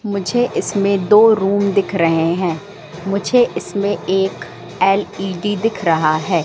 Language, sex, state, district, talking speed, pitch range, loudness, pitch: Hindi, female, Madhya Pradesh, Katni, 130 wpm, 170-205 Hz, -16 LUFS, 195 Hz